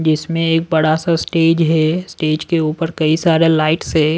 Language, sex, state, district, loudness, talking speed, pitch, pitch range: Hindi, male, Delhi, New Delhi, -15 LUFS, 185 wpm, 160 Hz, 155-165 Hz